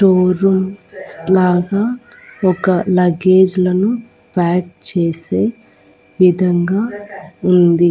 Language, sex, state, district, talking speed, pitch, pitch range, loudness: Telugu, female, Andhra Pradesh, Annamaya, 75 wpm, 185 Hz, 180-195 Hz, -15 LUFS